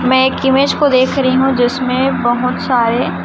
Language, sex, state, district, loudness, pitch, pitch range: Hindi, female, Chhattisgarh, Raipur, -13 LUFS, 255 Hz, 250-265 Hz